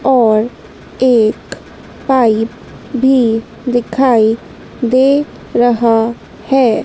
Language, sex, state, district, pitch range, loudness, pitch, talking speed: Hindi, female, Madhya Pradesh, Dhar, 225-260 Hz, -13 LUFS, 240 Hz, 70 wpm